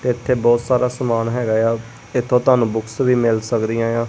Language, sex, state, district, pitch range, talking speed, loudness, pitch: Punjabi, female, Punjab, Kapurthala, 115-125 Hz, 205 wpm, -18 LUFS, 120 Hz